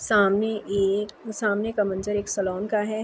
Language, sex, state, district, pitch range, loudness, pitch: Urdu, female, Andhra Pradesh, Anantapur, 200-215 Hz, -25 LUFS, 210 Hz